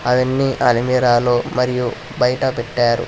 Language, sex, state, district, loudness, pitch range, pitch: Telugu, male, Telangana, Hyderabad, -17 LUFS, 120-130 Hz, 125 Hz